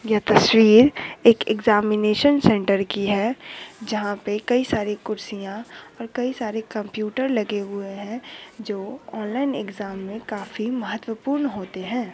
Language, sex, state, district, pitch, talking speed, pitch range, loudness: Hindi, female, Bihar, Sitamarhi, 215 Hz, 135 wpm, 205-235 Hz, -22 LUFS